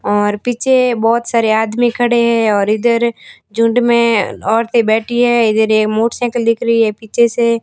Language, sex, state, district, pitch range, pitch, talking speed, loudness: Hindi, female, Rajasthan, Barmer, 220-235 Hz, 230 Hz, 165 wpm, -13 LUFS